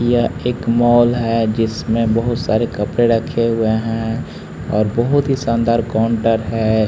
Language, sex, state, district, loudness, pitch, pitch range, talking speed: Hindi, male, Bihar, Patna, -17 LUFS, 115 Hz, 110-120 Hz, 150 wpm